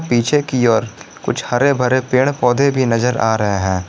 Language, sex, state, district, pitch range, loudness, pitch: Hindi, male, Jharkhand, Garhwa, 115-130 Hz, -16 LUFS, 125 Hz